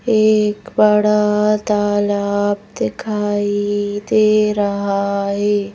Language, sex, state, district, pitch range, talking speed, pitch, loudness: Hindi, female, Madhya Pradesh, Bhopal, 205-210 Hz, 75 wpm, 205 Hz, -16 LUFS